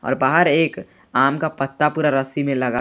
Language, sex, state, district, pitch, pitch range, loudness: Hindi, male, Jharkhand, Garhwa, 140 Hz, 135-150 Hz, -19 LUFS